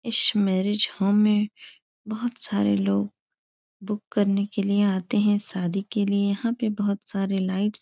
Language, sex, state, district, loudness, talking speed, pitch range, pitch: Hindi, female, Uttar Pradesh, Etah, -23 LUFS, 170 wpm, 195-210 Hz, 205 Hz